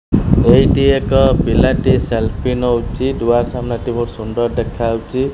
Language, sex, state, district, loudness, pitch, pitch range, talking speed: Odia, male, Odisha, Khordha, -15 LUFS, 120 Hz, 115-130 Hz, 110 wpm